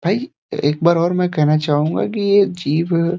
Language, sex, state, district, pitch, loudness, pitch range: Hindi, male, Uttar Pradesh, Deoria, 170 Hz, -17 LUFS, 155-185 Hz